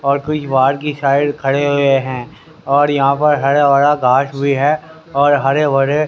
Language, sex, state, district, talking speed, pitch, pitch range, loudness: Hindi, male, Haryana, Rohtak, 185 wpm, 140 Hz, 135-150 Hz, -14 LUFS